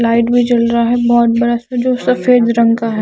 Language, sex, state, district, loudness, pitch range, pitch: Hindi, female, Chandigarh, Chandigarh, -13 LUFS, 235-245 Hz, 235 Hz